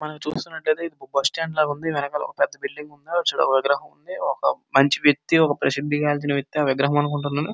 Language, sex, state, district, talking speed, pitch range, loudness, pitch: Telugu, male, Andhra Pradesh, Srikakulam, 175 wpm, 140-155 Hz, -22 LUFS, 145 Hz